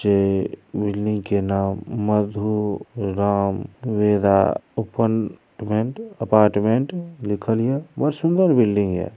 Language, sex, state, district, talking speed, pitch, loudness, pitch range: Maithili, male, Bihar, Darbhanga, 105 wpm, 105 Hz, -21 LUFS, 100-115 Hz